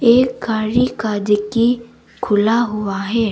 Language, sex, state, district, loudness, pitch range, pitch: Hindi, female, Arunachal Pradesh, Papum Pare, -17 LUFS, 210-235 Hz, 225 Hz